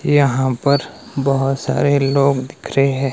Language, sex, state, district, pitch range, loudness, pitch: Hindi, male, Himachal Pradesh, Shimla, 135-140 Hz, -17 LUFS, 140 Hz